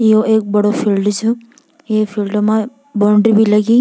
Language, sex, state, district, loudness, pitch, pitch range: Garhwali, female, Uttarakhand, Tehri Garhwal, -14 LUFS, 215 Hz, 210-230 Hz